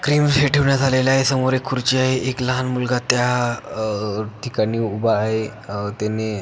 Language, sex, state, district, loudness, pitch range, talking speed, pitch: Marathi, male, Maharashtra, Pune, -20 LUFS, 110-130 Hz, 170 wpm, 125 Hz